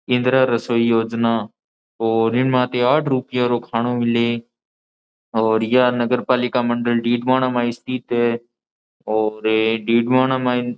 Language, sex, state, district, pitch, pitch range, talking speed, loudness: Marwari, male, Rajasthan, Nagaur, 120 Hz, 115-125 Hz, 130 wpm, -19 LUFS